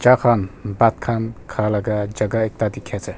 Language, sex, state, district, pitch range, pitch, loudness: Nagamese, male, Nagaland, Kohima, 105-115 Hz, 110 Hz, -20 LUFS